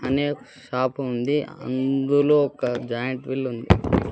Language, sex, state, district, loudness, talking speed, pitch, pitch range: Telugu, male, Andhra Pradesh, Sri Satya Sai, -23 LUFS, 100 wpm, 130 Hz, 125-140 Hz